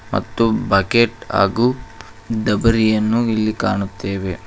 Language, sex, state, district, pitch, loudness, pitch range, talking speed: Kannada, male, Karnataka, Koppal, 110 Hz, -18 LUFS, 100-115 Hz, 80 wpm